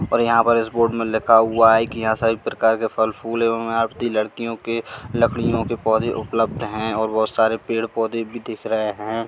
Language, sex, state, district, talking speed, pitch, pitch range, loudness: Hindi, male, Bihar, Katihar, 205 wpm, 115 Hz, 110-115 Hz, -20 LUFS